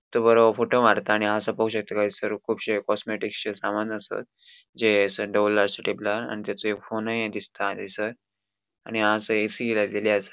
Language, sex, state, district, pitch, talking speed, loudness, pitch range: Konkani, male, Goa, North and South Goa, 105 Hz, 180 wpm, -25 LUFS, 105-110 Hz